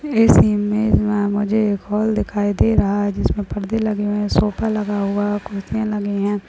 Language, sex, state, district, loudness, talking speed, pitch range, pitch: Hindi, female, Chhattisgarh, Rajnandgaon, -19 LUFS, 205 wpm, 205-215 Hz, 205 Hz